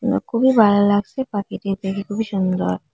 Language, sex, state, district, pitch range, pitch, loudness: Bengali, female, Assam, Hailakandi, 195-220 Hz, 205 Hz, -19 LUFS